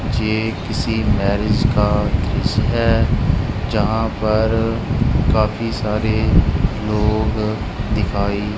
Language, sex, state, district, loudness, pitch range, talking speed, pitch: Hindi, male, Punjab, Kapurthala, -18 LUFS, 105-110 Hz, 85 wpm, 110 Hz